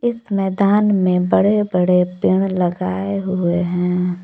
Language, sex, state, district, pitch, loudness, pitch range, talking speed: Hindi, female, Jharkhand, Palamu, 185 Hz, -17 LUFS, 180-200 Hz, 115 wpm